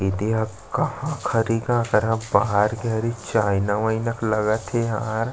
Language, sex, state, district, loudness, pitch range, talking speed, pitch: Chhattisgarhi, male, Chhattisgarh, Sarguja, -23 LUFS, 105-115 Hz, 180 wpm, 110 Hz